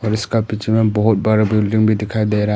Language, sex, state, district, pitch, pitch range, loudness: Hindi, male, Arunachal Pradesh, Papum Pare, 110 Hz, 105-110 Hz, -16 LUFS